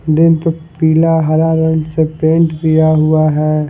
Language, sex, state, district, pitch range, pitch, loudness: Hindi, male, Punjab, Fazilka, 155-160 Hz, 160 Hz, -12 LUFS